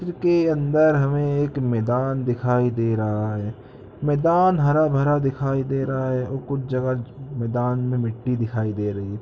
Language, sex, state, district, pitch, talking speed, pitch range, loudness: Hindi, male, Andhra Pradesh, Krishna, 130 Hz, 165 wpm, 120-145 Hz, -22 LUFS